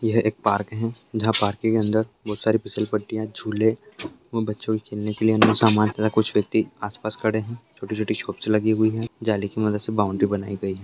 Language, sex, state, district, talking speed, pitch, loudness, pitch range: Hindi, male, Andhra Pradesh, Krishna, 210 wpm, 110 Hz, -23 LUFS, 105-110 Hz